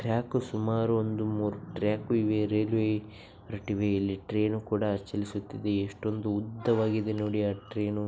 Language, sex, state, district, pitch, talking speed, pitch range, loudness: Kannada, male, Karnataka, Bijapur, 105 Hz, 125 wpm, 105-110 Hz, -30 LUFS